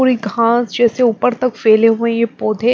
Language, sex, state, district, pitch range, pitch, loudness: Hindi, female, Maharashtra, Mumbai Suburban, 225-245 Hz, 235 Hz, -14 LUFS